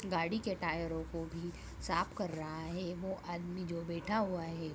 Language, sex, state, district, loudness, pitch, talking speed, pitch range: Hindi, female, Bihar, Bhagalpur, -39 LUFS, 175 Hz, 190 wpm, 165-185 Hz